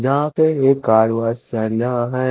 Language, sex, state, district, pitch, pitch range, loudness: Hindi, male, Punjab, Kapurthala, 125 Hz, 115-135 Hz, -17 LUFS